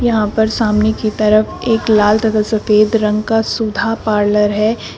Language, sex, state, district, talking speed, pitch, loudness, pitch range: Hindi, female, Uttar Pradesh, Shamli, 170 wpm, 215 Hz, -14 LUFS, 210-225 Hz